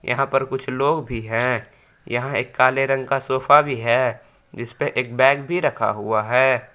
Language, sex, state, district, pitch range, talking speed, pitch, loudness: Hindi, male, Jharkhand, Palamu, 125-135 Hz, 185 wpm, 130 Hz, -20 LUFS